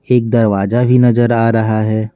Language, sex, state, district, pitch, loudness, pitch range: Hindi, male, Bihar, Patna, 115 Hz, -13 LUFS, 110-120 Hz